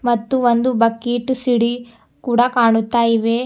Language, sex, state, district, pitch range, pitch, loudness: Kannada, female, Karnataka, Bidar, 230-245 Hz, 240 Hz, -17 LUFS